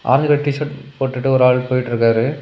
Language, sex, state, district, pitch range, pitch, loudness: Tamil, male, Tamil Nadu, Kanyakumari, 125-145 Hz, 130 Hz, -17 LUFS